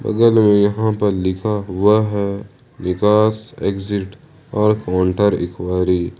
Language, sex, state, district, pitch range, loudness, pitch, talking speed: Hindi, male, Jharkhand, Ranchi, 95-110 Hz, -17 LUFS, 105 Hz, 125 wpm